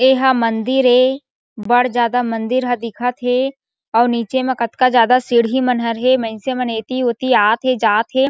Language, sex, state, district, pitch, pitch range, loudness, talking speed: Chhattisgarhi, female, Chhattisgarh, Sarguja, 245 Hz, 235-255 Hz, -16 LUFS, 195 wpm